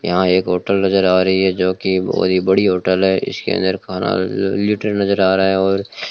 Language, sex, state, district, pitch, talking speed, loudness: Hindi, male, Rajasthan, Bikaner, 95 Hz, 215 wpm, -16 LUFS